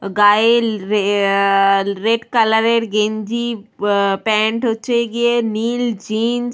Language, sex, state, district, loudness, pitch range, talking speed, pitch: Bengali, female, West Bengal, Purulia, -16 LUFS, 205-235 Hz, 120 wpm, 220 Hz